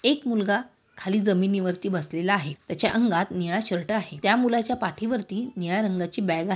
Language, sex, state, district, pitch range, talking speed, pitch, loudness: Marathi, female, Maharashtra, Aurangabad, 175-220 Hz, 165 wpm, 195 Hz, -25 LUFS